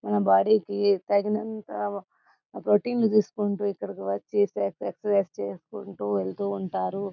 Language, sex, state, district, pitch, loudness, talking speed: Telugu, female, Telangana, Karimnagar, 190 Hz, -26 LUFS, 90 wpm